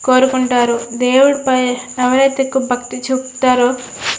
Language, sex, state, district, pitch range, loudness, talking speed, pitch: Telugu, female, Andhra Pradesh, Srikakulam, 250-265 Hz, -15 LUFS, 115 wpm, 255 Hz